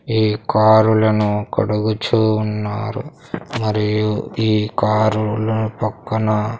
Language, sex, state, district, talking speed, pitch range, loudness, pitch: Telugu, male, Andhra Pradesh, Sri Satya Sai, 75 wpm, 105-110 Hz, -18 LUFS, 110 Hz